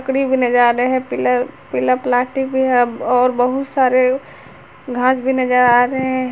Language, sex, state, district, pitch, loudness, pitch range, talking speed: Hindi, female, Jharkhand, Garhwa, 255 Hz, -16 LUFS, 245-260 Hz, 150 wpm